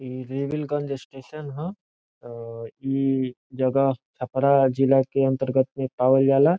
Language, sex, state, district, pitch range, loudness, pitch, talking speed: Bhojpuri, male, Bihar, Saran, 130-140 Hz, -23 LUFS, 135 Hz, 120 wpm